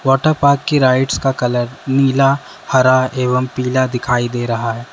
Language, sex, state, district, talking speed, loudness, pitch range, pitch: Hindi, male, Uttar Pradesh, Lalitpur, 170 wpm, -15 LUFS, 125-135 Hz, 130 Hz